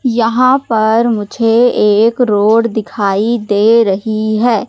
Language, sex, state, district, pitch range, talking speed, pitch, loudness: Hindi, female, Madhya Pradesh, Katni, 215-235 Hz, 115 wpm, 225 Hz, -12 LUFS